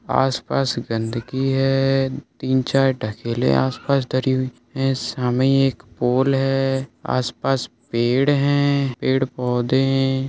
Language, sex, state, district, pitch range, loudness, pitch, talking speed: Hindi, male, Bihar, East Champaran, 125-135 Hz, -20 LUFS, 130 Hz, 110 wpm